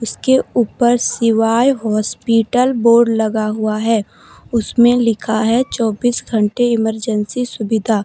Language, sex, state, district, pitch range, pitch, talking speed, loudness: Hindi, female, Jharkhand, Deoghar, 220-240 Hz, 230 Hz, 110 wpm, -15 LUFS